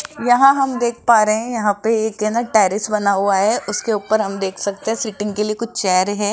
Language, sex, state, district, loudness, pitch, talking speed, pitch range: Hindi, female, Rajasthan, Jaipur, -17 LUFS, 215 Hz, 235 wpm, 205-230 Hz